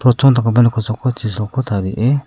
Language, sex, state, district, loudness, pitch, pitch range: Garo, male, Meghalaya, South Garo Hills, -16 LUFS, 120 Hz, 110-125 Hz